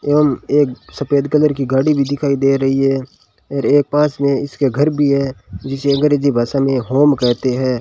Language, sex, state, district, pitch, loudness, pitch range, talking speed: Hindi, male, Rajasthan, Bikaner, 140 Hz, -16 LUFS, 135-145 Hz, 200 wpm